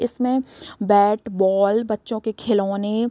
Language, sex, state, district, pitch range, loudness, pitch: Hindi, female, Bihar, Sitamarhi, 200-230 Hz, -20 LUFS, 215 Hz